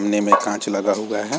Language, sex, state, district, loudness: Hindi, male, Chhattisgarh, Rajnandgaon, -19 LUFS